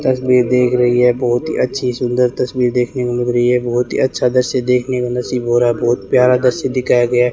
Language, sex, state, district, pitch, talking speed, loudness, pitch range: Hindi, male, Rajasthan, Bikaner, 125 Hz, 230 wpm, -15 LUFS, 120-125 Hz